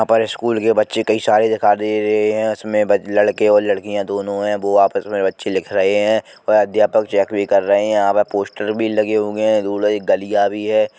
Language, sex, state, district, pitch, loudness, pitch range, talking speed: Bundeli, male, Uttar Pradesh, Jalaun, 105 Hz, -17 LUFS, 100-110 Hz, 230 wpm